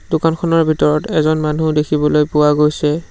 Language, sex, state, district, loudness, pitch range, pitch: Assamese, male, Assam, Sonitpur, -15 LUFS, 150-160 Hz, 155 Hz